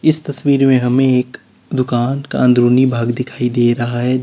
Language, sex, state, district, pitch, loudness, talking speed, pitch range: Hindi, male, Uttar Pradesh, Lalitpur, 125 Hz, -15 LUFS, 185 wpm, 120-135 Hz